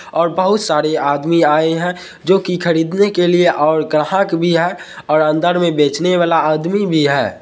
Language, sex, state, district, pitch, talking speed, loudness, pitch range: Hindi, male, Bihar, Purnia, 170 Hz, 185 wpm, -15 LUFS, 155-180 Hz